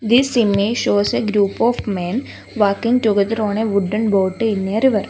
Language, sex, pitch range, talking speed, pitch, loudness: English, female, 200-230 Hz, 190 wpm, 215 Hz, -18 LUFS